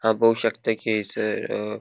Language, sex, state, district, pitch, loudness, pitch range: Konkani, male, Goa, North and South Goa, 110 Hz, -24 LUFS, 110-115 Hz